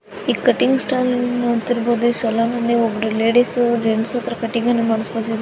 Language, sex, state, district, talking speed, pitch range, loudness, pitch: Kannada, female, Karnataka, Raichur, 145 wpm, 225-245 Hz, -18 LUFS, 235 Hz